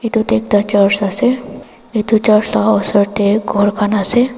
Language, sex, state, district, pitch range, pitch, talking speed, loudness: Nagamese, female, Nagaland, Dimapur, 205-225 Hz, 210 Hz, 165 wpm, -14 LUFS